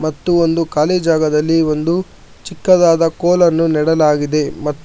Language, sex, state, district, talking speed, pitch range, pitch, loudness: Kannada, male, Karnataka, Bangalore, 100 wpm, 155-170 Hz, 165 Hz, -14 LUFS